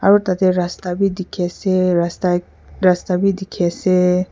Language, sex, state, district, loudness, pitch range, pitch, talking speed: Nagamese, female, Nagaland, Kohima, -18 LUFS, 180-190 Hz, 185 Hz, 165 wpm